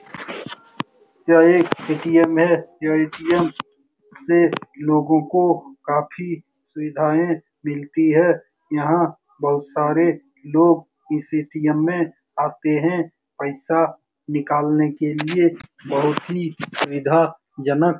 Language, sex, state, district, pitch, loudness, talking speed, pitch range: Hindi, male, Bihar, Saran, 155 Hz, -20 LUFS, 100 wpm, 150-165 Hz